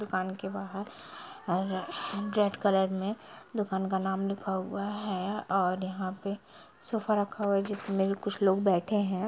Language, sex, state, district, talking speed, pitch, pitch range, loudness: Hindi, female, Bihar, Sitamarhi, 155 wpm, 195 Hz, 190-205 Hz, -31 LUFS